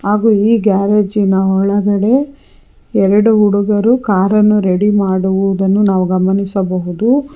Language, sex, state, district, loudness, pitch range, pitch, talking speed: Kannada, female, Karnataka, Bangalore, -13 LUFS, 195-210 Hz, 200 Hz, 90 wpm